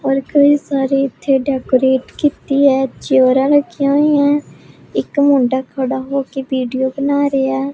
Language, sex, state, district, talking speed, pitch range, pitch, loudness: Punjabi, female, Punjab, Pathankot, 145 wpm, 265-285 Hz, 275 Hz, -15 LUFS